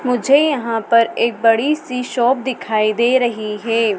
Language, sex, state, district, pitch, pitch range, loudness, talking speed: Hindi, female, Madhya Pradesh, Dhar, 235 Hz, 225-255 Hz, -16 LUFS, 165 wpm